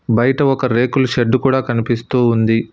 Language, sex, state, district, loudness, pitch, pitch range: Telugu, male, Telangana, Hyderabad, -15 LUFS, 120 Hz, 115-130 Hz